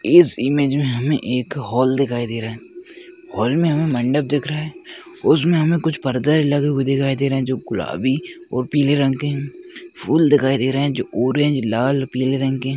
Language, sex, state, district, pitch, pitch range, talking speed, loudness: Hindi, male, Chhattisgarh, Balrampur, 140 Hz, 130-160 Hz, 210 wpm, -19 LUFS